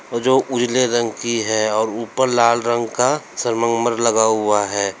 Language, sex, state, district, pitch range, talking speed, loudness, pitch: Hindi, male, Uttar Pradesh, Lalitpur, 110-120 Hz, 180 wpm, -18 LUFS, 115 Hz